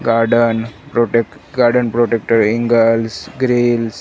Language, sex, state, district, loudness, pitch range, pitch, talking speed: Hindi, male, Gujarat, Gandhinagar, -15 LUFS, 115-120 Hz, 115 Hz, 105 wpm